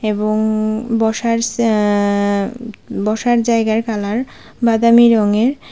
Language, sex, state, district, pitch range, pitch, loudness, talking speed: Bengali, female, Tripura, West Tripura, 215-230 Hz, 220 Hz, -15 LUFS, 95 wpm